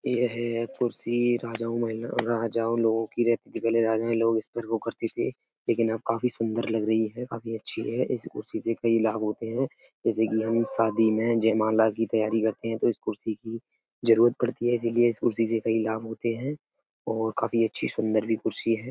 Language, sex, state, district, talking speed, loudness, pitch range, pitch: Hindi, male, Uttar Pradesh, Etah, 210 wpm, -27 LUFS, 110-115 Hz, 115 Hz